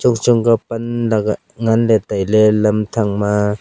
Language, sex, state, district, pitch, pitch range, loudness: Wancho, male, Arunachal Pradesh, Longding, 110 Hz, 105-115 Hz, -16 LUFS